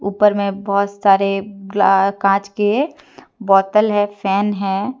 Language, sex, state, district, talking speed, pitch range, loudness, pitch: Hindi, female, Jharkhand, Deoghar, 130 wpm, 195-205 Hz, -17 LUFS, 200 Hz